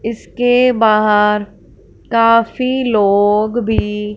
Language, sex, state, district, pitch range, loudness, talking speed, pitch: Hindi, female, Punjab, Fazilka, 210-240 Hz, -14 LUFS, 70 wpm, 220 Hz